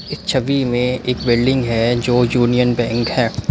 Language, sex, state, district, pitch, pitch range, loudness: Hindi, male, Assam, Kamrup Metropolitan, 125 Hz, 120-130 Hz, -17 LUFS